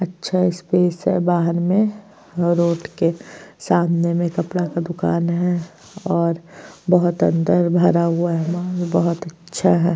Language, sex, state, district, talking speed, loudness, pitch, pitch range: Hindi, female, Uttar Pradesh, Jyotiba Phule Nagar, 140 wpm, -19 LUFS, 175 Hz, 170-180 Hz